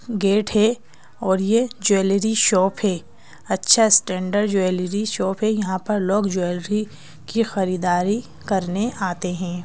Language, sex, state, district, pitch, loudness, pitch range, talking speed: Hindi, female, Madhya Pradesh, Bhopal, 195 Hz, -20 LUFS, 185-215 Hz, 130 wpm